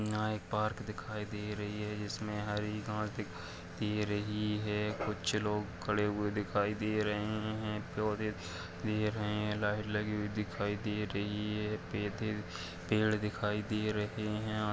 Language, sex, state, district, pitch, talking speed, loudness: Hindi, male, Uttar Pradesh, Etah, 105 Hz, 150 wpm, -36 LUFS